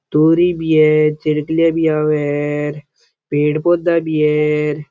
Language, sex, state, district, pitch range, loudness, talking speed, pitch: Rajasthani, male, Rajasthan, Churu, 150-160 Hz, -15 LUFS, 145 wpm, 150 Hz